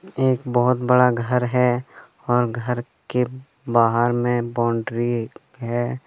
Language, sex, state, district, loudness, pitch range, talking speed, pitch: Hindi, male, Jharkhand, Deoghar, -21 LUFS, 120-125 Hz, 120 wpm, 120 Hz